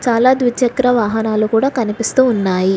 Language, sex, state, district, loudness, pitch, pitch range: Telugu, female, Telangana, Hyderabad, -15 LUFS, 230 Hz, 215-250 Hz